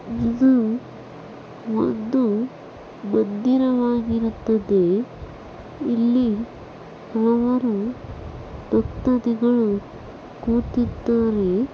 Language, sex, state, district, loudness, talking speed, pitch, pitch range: Kannada, female, Karnataka, Bellary, -21 LUFS, 30 wpm, 235 Hz, 220-245 Hz